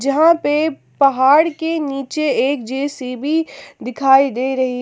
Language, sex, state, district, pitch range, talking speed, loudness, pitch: Hindi, female, Jharkhand, Palamu, 265-305 Hz, 135 wpm, -16 LUFS, 280 Hz